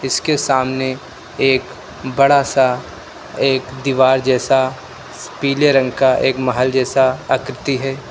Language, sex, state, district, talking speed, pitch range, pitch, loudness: Hindi, male, Uttar Pradesh, Lucknow, 120 wpm, 130-135 Hz, 130 Hz, -16 LUFS